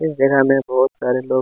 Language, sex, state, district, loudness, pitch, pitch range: Hindi, male, Chhattisgarh, Kabirdham, -17 LUFS, 135 Hz, 130-135 Hz